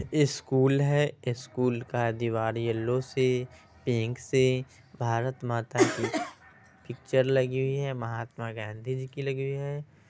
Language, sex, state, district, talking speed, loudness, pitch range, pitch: Hindi, male, Bihar, Muzaffarpur, 145 wpm, -29 LUFS, 115-135 Hz, 125 Hz